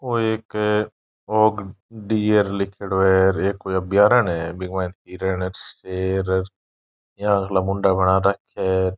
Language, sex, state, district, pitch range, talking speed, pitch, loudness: Rajasthani, male, Rajasthan, Churu, 95-105 Hz, 135 wpm, 95 Hz, -21 LUFS